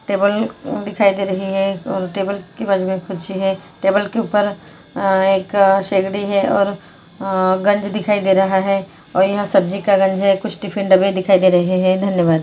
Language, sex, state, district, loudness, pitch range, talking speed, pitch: Hindi, female, Uttarakhand, Uttarkashi, -17 LUFS, 190-200 Hz, 185 wpm, 195 Hz